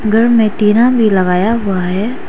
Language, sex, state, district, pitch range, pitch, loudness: Hindi, female, Arunachal Pradesh, Lower Dibang Valley, 195-230 Hz, 215 Hz, -12 LUFS